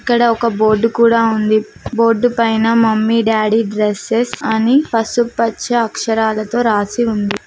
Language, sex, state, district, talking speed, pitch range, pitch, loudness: Telugu, female, Telangana, Mahabubabad, 120 wpm, 215-235 Hz, 225 Hz, -15 LUFS